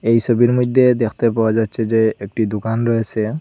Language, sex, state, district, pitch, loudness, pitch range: Bengali, male, Assam, Hailakandi, 115 Hz, -17 LUFS, 110-120 Hz